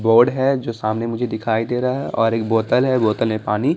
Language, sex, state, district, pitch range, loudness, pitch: Hindi, male, Bihar, Patna, 110-125 Hz, -19 LUFS, 115 Hz